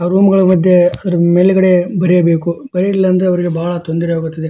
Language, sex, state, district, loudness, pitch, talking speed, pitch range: Kannada, male, Karnataka, Dharwad, -12 LUFS, 180 Hz, 145 wpm, 170-185 Hz